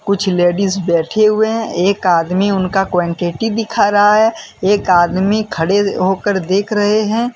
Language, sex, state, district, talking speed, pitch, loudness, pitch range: Hindi, male, Jharkhand, Deoghar, 155 wpm, 200 Hz, -14 LUFS, 185-215 Hz